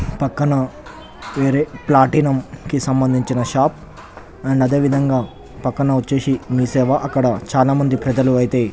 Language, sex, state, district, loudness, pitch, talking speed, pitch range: Telugu, male, Telangana, Nalgonda, -17 LUFS, 135 Hz, 125 wpm, 130-140 Hz